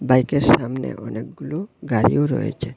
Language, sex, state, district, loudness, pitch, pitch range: Bengali, male, Tripura, West Tripura, -21 LUFS, 135 Hz, 125-145 Hz